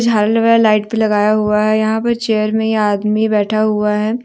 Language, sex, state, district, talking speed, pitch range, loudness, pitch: Hindi, female, Jharkhand, Deoghar, 225 wpm, 210-220 Hz, -14 LUFS, 215 Hz